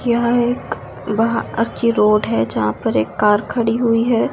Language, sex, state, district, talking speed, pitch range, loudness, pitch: Hindi, female, Delhi, New Delhi, 165 wpm, 210-235 Hz, -17 LUFS, 230 Hz